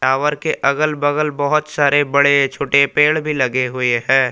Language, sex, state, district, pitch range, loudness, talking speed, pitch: Hindi, male, Jharkhand, Palamu, 135-150 Hz, -16 LUFS, 180 wpm, 140 Hz